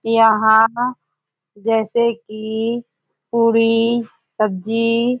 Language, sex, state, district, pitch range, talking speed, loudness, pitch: Hindi, female, Chhattisgarh, Bastar, 220-235 Hz, 60 wpm, -17 LUFS, 230 Hz